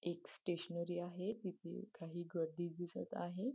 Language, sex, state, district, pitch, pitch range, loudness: Marathi, female, Maharashtra, Nagpur, 175 Hz, 170-185 Hz, -45 LUFS